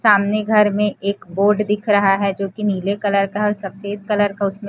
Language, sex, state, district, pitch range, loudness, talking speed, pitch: Hindi, female, Chhattisgarh, Raipur, 200-210 Hz, -18 LUFS, 245 wpm, 205 Hz